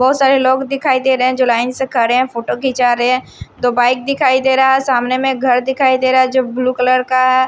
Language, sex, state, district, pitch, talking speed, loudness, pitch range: Hindi, female, Odisha, Sambalpur, 255 Hz, 280 wpm, -14 LUFS, 250-265 Hz